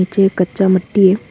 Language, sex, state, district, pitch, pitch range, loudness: Hindi, male, Arunachal Pradesh, Longding, 190 Hz, 185-195 Hz, -14 LUFS